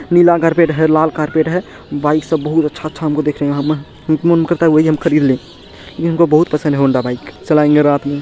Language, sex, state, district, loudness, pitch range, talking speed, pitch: Hindi, male, Bihar, Madhepura, -14 LUFS, 145-165 Hz, 220 wpm, 155 Hz